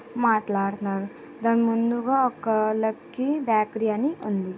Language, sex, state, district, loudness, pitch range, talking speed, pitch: Telugu, female, Andhra Pradesh, Krishna, -24 LUFS, 205-235 Hz, 105 wpm, 220 Hz